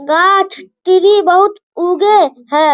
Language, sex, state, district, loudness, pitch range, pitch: Hindi, male, Bihar, Bhagalpur, -11 LUFS, 320-400 Hz, 370 Hz